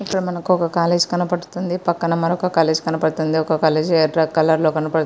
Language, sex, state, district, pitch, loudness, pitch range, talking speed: Telugu, female, Andhra Pradesh, Srikakulam, 165 Hz, -18 LUFS, 160-175 Hz, 180 wpm